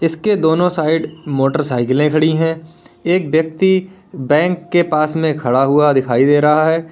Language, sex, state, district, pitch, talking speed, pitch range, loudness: Hindi, male, Uttar Pradesh, Lalitpur, 160 Hz, 155 wpm, 150-170 Hz, -15 LUFS